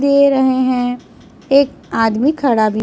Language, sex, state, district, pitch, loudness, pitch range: Hindi, male, Punjab, Pathankot, 260 Hz, -15 LUFS, 235-280 Hz